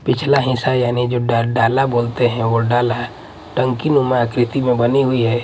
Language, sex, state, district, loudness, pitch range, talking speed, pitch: Hindi, male, Odisha, Malkangiri, -17 LUFS, 120-130 Hz, 175 wpm, 125 Hz